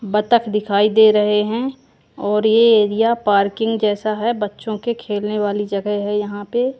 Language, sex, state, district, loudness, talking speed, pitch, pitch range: Hindi, female, Haryana, Jhajjar, -18 LUFS, 170 wpm, 210 Hz, 205-225 Hz